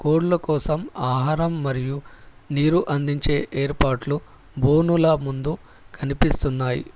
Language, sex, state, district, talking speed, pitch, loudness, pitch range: Telugu, male, Telangana, Hyderabad, 85 wpm, 145 Hz, -22 LUFS, 135-155 Hz